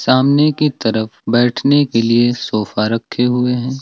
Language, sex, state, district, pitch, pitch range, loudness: Hindi, male, Uttar Pradesh, Lucknow, 120 Hz, 115-135 Hz, -15 LUFS